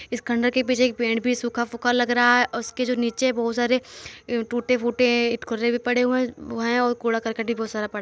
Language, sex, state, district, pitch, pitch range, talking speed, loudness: Hindi, male, Uttar Pradesh, Muzaffarnagar, 240 Hz, 235-245 Hz, 240 wpm, -23 LUFS